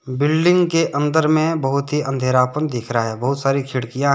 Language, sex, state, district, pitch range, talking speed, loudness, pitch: Hindi, male, Jharkhand, Deoghar, 130-155 Hz, 215 wpm, -18 LUFS, 140 Hz